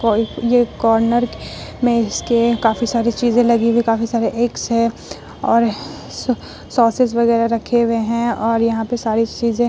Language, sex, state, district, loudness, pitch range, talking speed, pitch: Hindi, female, Bihar, Vaishali, -17 LUFS, 230-240 Hz, 160 wpm, 235 Hz